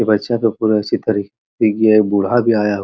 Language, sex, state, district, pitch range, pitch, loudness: Hindi, male, Uttar Pradesh, Muzaffarnagar, 100-110 Hz, 110 Hz, -16 LUFS